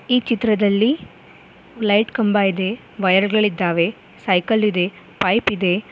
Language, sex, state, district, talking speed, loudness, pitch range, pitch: Kannada, female, Karnataka, Koppal, 110 wpm, -19 LUFS, 190-220 Hz, 205 Hz